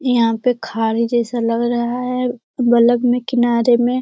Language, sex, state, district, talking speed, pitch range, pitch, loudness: Hindi, female, Bihar, Jamui, 165 wpm, 235-245 Hz, 240 Hz, -17 LUFS